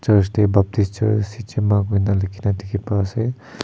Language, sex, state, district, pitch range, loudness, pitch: Nagamese, male, Nagaland, Kohima, 100-110 Hz, -20 LUFS, 105 Hz